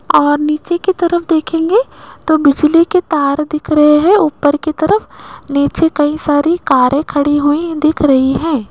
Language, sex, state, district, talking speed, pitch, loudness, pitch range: Hindi, female, Rajasthan, Jaipur, 165 wpm, 305 Hz, -12 LUFS, 290-330 Hz